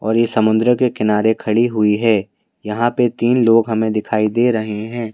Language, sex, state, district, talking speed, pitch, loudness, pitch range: Hindi, male, Madhya Pradesh, Bhopal, 200 wpm, 110 Hz, -16 LUFS, 110-120 Hz